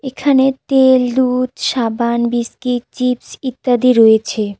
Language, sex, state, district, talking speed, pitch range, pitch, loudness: Bengali, female, West Bengal, Cooch Behar, 105 wpm, 235-260 Hz, 250 Hz, -14 LUFS